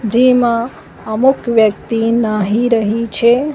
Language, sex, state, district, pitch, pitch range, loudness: Gujarati, female, Gujarat, Valsad, 230 Hz, 220-245 Hz, -14 LUFS